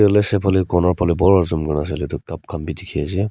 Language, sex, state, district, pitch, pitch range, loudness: Nagamese, male, Nagaland, Kohima, 90 Hz, 80-95 Hz, -19 LUFS